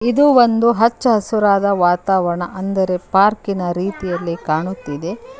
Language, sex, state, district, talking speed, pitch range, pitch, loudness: Kannada, female, Karnataka, Koppal, 90 wpm, 175-230 Hz, 195 Hz, -16 LUFS